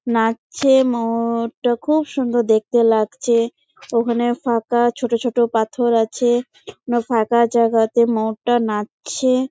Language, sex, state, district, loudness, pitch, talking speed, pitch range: Bengali, female, West Bengal, Jalpaiguri, -18 LUFS, 235 Hz, 120 wpm, 230-245 Hz